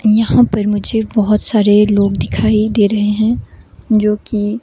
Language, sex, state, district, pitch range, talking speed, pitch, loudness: Hindi, female, Himachal Pradesh, Shimla, 210-220 Hz, 155 wpm, 210 Hz, -13 LUFS